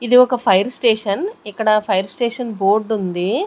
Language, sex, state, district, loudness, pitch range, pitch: Telugu, female, Andhra Pradesh, Sri Satya Sai, -18 LUFS, 200-250 Hz, 220 Hz